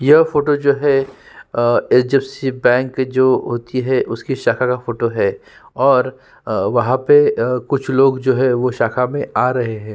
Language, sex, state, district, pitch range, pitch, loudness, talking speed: Hindi, male, Uttarakhand, Tehri Garhwal, 125-140 Hz, 130 Hz, -16 LUFS, 180 wpm